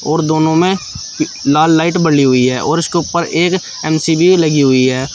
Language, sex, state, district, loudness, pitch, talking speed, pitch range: Hindi, male, Uttar Pradesh, Shamli, -13 LUFS, 160 Hz, 175 wpm, 140-170 Hz